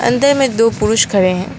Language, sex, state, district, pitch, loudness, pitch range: Hindi, female, West Bengal, Alipurduar, 225 Hz, -13 LUFS, 195-250 Hz